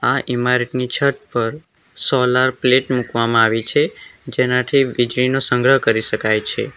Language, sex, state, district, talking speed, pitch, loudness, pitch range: Gujarati, male, Gujarat, Valsad, 135 wpm, 125 Hz, -17 LUFS, 115-130 Hz